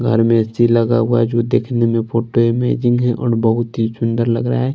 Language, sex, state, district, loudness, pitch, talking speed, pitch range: Hindi, male, Chhattisgarh, Raipur, -16 LUFS, 115 Hz, 240 wpm, 115-120 Hz